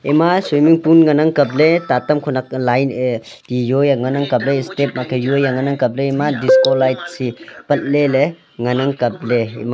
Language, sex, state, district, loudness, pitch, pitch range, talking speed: Wancho, male, Arunachal Pradesh, Longding, -16 LUFS, 135 Hz, 125-145 Hz, 175 wpm